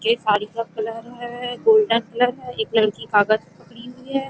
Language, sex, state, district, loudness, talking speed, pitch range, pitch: Hindi, female, Chhattisgarh, Rajnandgaon, -21 LUFS, 210 wpm, 215-245 Hz, 230 Hz